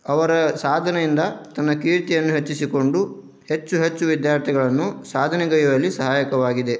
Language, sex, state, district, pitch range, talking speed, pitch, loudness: Kannada, male, Karnataka, Dharwad, 135-165 Hz, 90 wpm, 150 Hz, -20 LUFS